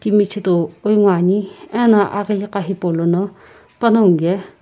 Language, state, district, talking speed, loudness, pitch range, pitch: Sumi, Nagaland, Kohima, 90 wpm, -16 LUFS, 180-210 Hz, 200 Hz